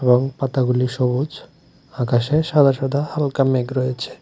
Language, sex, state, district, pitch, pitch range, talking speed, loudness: Bengali, male, Tripura, West Tripura, 135 Hz, 125-140 Hz, 130 wpm, -19 LUFS